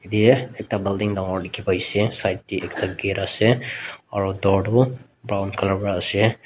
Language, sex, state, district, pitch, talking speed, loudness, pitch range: Nagamese, male, Nagaland, Dimapur, 100 Hz, 165 wpm, -22 LUFS, 95-110 Hz